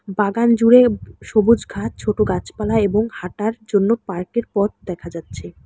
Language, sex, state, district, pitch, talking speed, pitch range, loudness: Bengali, female, West Bengal, Alipurduar, 210 Hz, 140 wpm, 185-230 Hz, -18 LUFS